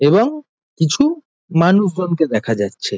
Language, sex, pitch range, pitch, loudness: Bengali, male, 160-230 Hz, 180 Hz, -17 LUFS